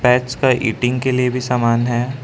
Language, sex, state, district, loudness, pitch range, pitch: Hindi, male, Arunachal Pradesh, Lower Dibang Valley, -17 LUFS, 120-125 Hz, 125 Hz